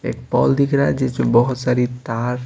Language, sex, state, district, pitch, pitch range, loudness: Hindi, male, Bihar, Patna, 125 Hz, 120-130 Hz, -18 LUFS